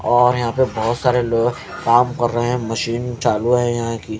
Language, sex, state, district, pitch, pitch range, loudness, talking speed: Hindi, male, Punjab, Fazilka, 120 Hz, 115-125 Hz, -18 LUFS, 215 wpm